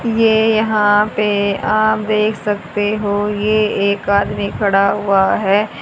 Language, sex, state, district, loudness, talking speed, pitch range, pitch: Hindi, female, Haryana, Charkhi Dadri, -15 LUFS, 135 wpm, 200-215 Hz, 210 Hz